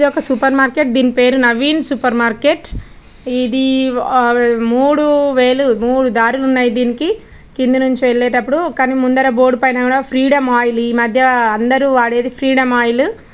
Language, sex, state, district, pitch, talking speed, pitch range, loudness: Telugu, female, Telangana, Nalgonda, 255 Hz, 140 wpm, 245-270 Hz, -13 LUFS